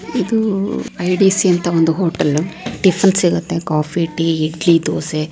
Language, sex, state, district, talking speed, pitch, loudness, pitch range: Kannada, female, Karnataka, Raichur, 160 wpm, 170 Hz, -16 LUFS, 160-190 Hz